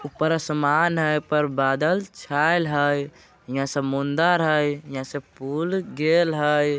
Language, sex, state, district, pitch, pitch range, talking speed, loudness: Bajjika, male, Bihar, Vaishali, 150 Hz, 145-160 Hz, 140 wpm, -23 LUFS